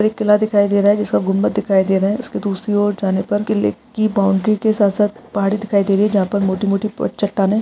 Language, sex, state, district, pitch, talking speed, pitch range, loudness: Hindi, female, Rajasthan, Nagaur, 205 Hz, 260 wpm, 195-210 Hz, -17 LUFS